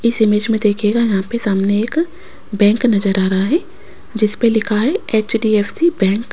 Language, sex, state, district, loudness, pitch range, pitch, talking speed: Hindi, female, Rajasthan, Jaipur, -16 LUFS, 205-235 Hz, 220 Hz, 180 wpm